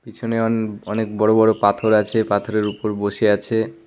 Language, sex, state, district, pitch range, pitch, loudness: Bengali, male, West Bengal, Cooch Behar, 105-110 Hz, 110 Hz, -19 LUFS